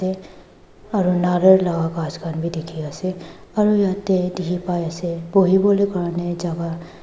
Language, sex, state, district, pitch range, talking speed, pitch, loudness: Nagamese, female, Nagaland, Dimapur, 170-190 Hz, 160 wpm, 180 Hz, -20 LUFS